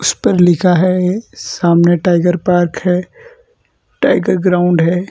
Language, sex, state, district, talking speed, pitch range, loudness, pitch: Hindi, male, Gujarat, Valsad, 130 wpm, 175-185 Hz, -13 LUFS, 180 Hz